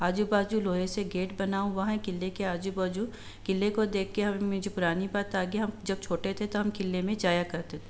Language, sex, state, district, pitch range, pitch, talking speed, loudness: Hindi, female, Uttar Pradesh, Jalaun, 185-205 Hz, 195 Hz, 235 wpm, -30 LUFS